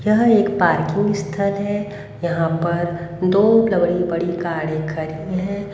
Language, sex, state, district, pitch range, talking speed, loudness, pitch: Hindi, female, Haryana, Rohtak, 170-205 Hz, 135 wpm, -19 LUFS, 180 Hz